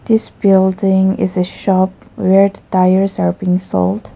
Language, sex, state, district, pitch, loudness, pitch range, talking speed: English, female, Nagaland, Kohima, 190 Hz, -14 LUFS, 180-195 Hz, 145 wpm